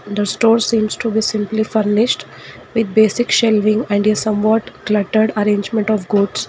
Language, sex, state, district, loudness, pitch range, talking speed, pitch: English, female, Karnataka, Bangalore, -16 LUFS, 210-225 Hz, 165 wpm, 215 Hz